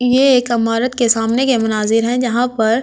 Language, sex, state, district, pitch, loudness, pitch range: Hindi, female, Delhi, New Delhi, 240 Hz, -15 LUFS, 225-250 Hz